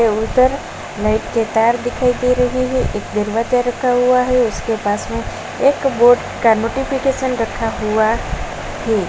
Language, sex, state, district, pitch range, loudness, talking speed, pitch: Hindi, female, Uttar Pradesh, Jalaun, 225-255 Hz, -17 LUFS, 160 wpm, 240 Hz